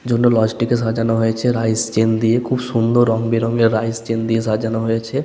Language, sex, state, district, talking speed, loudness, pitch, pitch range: Bengali, male, West Bengal, Paschim Medinipur, 205 wpm, -17 LUFS, 115 Hz, 115-120 Hz